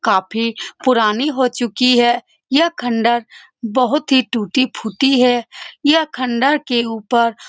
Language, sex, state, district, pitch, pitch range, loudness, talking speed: Hindi, female, Bihar, Saran, 245 Hz, 230-270 Hz, -16 LUFS, 135 wpm